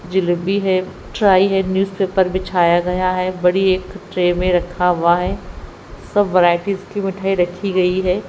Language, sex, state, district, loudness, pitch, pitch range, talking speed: Hindi, female, Haryana, Rohtak, -17 LUFS, 185 Hz, 180-195 Hz, 160 wpm